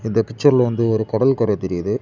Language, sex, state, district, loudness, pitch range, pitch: Tamil, male, Tamil Nadu, Kanyakumari, -18 LUFS, 110-120 Hz, 115 Hz